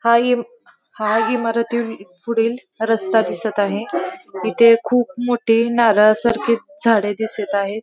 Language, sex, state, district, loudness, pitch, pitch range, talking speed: Marathi, female, Maharashtra, Pune, -18 LUFS, 230 Hz, 215-235 Hz, 125 wpm